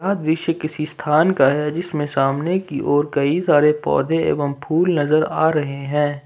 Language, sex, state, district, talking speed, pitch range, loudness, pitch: Hindi, male, Jharkhand, Ranchi, 180 wpm, 145-165 Hz, -19 LUFS, 150 Hz